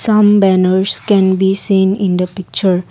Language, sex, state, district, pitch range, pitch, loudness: English, female, Assam, Kamrup Metropolitan, 185-200 Hz, 190 Hz, -12 LUFS